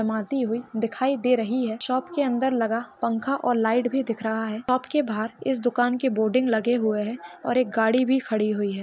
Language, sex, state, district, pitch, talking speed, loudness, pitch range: Hindi, female, Maharashtra, Pune, 240 Hz, 230 wpm, -24 LUFS, 220-255 Hz